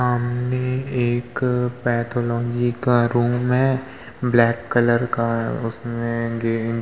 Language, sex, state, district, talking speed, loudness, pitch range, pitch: Hindi, male, Uttar Pradesh, Hamirpur, 95 wpm, -21 LUFS, 115-125 Hz, 120 Hz